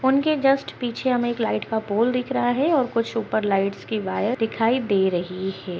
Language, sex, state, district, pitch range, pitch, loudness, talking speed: Hindi, female, Bihar, Kishanganj, 200-250 Hz, 230 Hz, -23 LUFS, 225 wpm